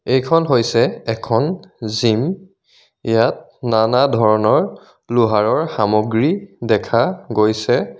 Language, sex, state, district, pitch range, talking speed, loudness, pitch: Assamese, male, Assam, Kamrup Metropolitan, 110-150 Hz, 80 wpm, -17 LUFS, 115 Hz